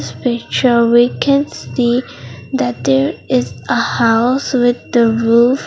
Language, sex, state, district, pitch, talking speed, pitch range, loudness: English, female, Mizoram, Aizawl, 235 Hz, 150 wpm, 225-250 Hz, -14 LUFS